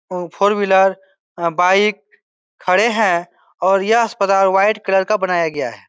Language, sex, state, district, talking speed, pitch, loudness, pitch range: Hindi, male, Bihar, Supaul, 155 wpm, 190 Hz, -16 LUFS, 180-200 Hz